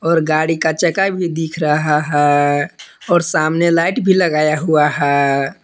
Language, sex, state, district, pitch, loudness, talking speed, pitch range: Hindi, male, Jharkhand, Palamu, 160 Hz, -15 LUFS, 160 wpm, 150-170 Hz